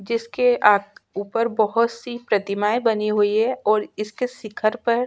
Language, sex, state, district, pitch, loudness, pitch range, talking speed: Hindi, female, Chhattisgarh, Sukma, 220 Hz, -21 LUFS, 210-240 Hz, 155 wpm